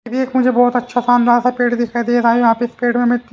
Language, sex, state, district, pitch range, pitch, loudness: Hindi, male, Haryana, Jhajjar, 240-245 Hz, 245 Hz, -15 LUFS